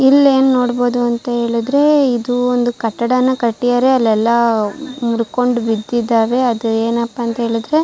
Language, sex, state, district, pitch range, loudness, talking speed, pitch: Kannada, female, Karnataka, Shimoga, 230-255 Hz, -15 LUFS, 120 wpm, 240 Hz